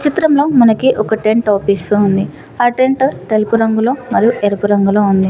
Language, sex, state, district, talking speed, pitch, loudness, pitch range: Telugu, female, Telangana, Mahabubabad, 160 wpm, 220 Hz, -13 LUFS, 205-255 Hz